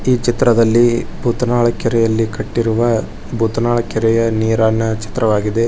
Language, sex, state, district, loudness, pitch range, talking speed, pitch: Kannada, male, Karnataka, Bijapur, -15 LUFS, 110-120 Hz, 95 wpm, 115 Hz